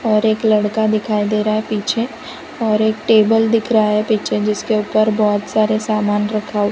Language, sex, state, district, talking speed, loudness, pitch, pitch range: Hindi, female, Gujarat, Valsad, 205 wpm, -16 LUFS, 215 Hz, 210-220 Hz